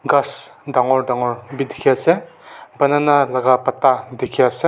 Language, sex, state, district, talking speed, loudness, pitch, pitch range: Nagamese, male, Nagaland, Kohima, 140 wpm, -17 LUFS, 130 Hz, 130-140 Hz